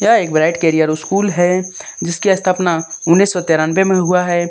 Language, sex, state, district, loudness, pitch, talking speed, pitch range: Hindi, male, Jharkhand, Deoghar, -15 LUFS, 175 Hz, 185 wpm, 165-185 Hz